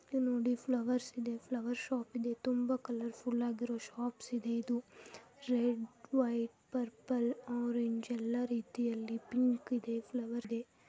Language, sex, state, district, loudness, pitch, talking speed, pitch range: Kannada, female, Karnataka, Bijapur, -37 LUFS, 240 Hz, 130 wpm, 235-245 Hz